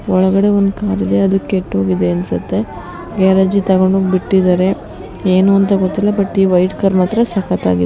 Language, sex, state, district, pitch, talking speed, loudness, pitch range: Kannada, female, Karnataka, Bijapur, 190 Hz, 155 wpm, -14 LUFS, 180-195 Hz